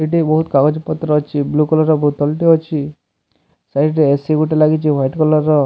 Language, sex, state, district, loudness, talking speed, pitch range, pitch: Odia, male, Odisha, Sambalpur, -15 LUFS, 210 wpm, 145-155 Hz, 155 Hz